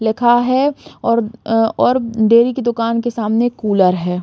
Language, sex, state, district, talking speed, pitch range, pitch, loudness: Hindi, female, Chhattisgarh, Raigarh, 185 wpm, 220-240 Hz, 230 Hz, -15 LUFS